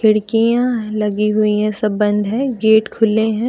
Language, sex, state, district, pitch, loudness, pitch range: Hindi, female, Jharkhand, Deoghar, 215 Hz, -16 LUFS, 210-225 Hz